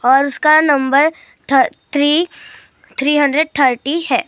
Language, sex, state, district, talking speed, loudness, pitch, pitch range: Hindi, male, Maharashtra, Gondia, 140 wpm, -14 LUFS, 290 Hz, 275-325 Hz